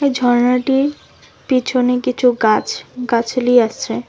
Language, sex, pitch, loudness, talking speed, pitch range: Bengali, female, 250 Hz, -16 LUFS, 105 wpm, 240-255 Hz